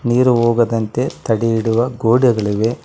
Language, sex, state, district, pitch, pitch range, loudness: Kannada, male, Karnataka, Koppal, 115 Hz, 115-125 Hz, -16 LUFS